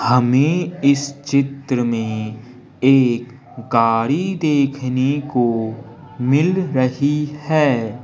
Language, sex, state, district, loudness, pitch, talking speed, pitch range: Hindi, male, Bihar, Patna, -18 LUFS, 130 Hz, 80 wpm, 120-145 Hz